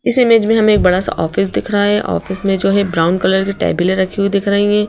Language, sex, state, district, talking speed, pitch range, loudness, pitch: Hindi, female, Madhya Pradesh, Bhopal, 305 wpm, 185-205 Hz, -14 LUFS, 200 Hz